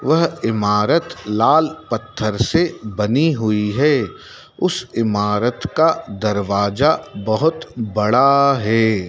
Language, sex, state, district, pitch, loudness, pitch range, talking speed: Hindi, male, Madhya Pradesh, Dhar, 115 Hz, -18 LUFS, 105-155 Hz, 100 wpm